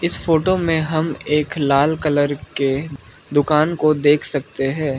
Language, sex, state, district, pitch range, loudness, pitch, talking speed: Hindi, male, Arunachal Pradesh, Lower Dibang Valley, 140-155 Hz, -18 LUFS, 150 Hz, 155 wpm